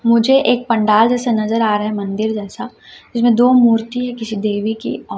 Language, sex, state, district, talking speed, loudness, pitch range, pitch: Hindi, female, Chhattisgarh, Raipur, 210 wpm, -15 LUFS, 215-245 Hz, 230 Hz